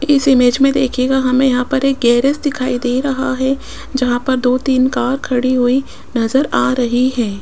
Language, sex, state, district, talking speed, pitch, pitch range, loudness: Hindi, female, Rajasthan, Jaipur, 195 wpm, 260 Hz, 250-270 Hz, -15 LUFS